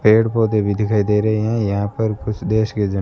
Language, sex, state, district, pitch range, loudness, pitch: Hindi, male, Rajasthan, Bikaner, 105-110 Hz, -18 LUFS, 105 Hz